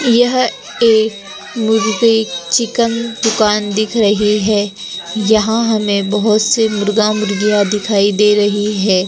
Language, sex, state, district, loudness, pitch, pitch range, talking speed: Hindi, female, Maharashtra, Gondia, -14 LUFS, 215 Hz, 205-225 Hz, 120 wpm